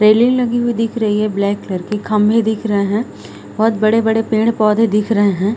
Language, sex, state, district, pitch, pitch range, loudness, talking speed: Hindi, female, Chhattisgarh, Rajnandgaon, 215 Hz, 210-225 Hz, -15 LUFS, 205 wpm